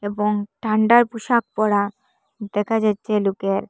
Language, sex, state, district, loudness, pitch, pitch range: Bengali, female, Assam, Hailakandi, -20 LUFS, 215 Hz, 205-230 Hz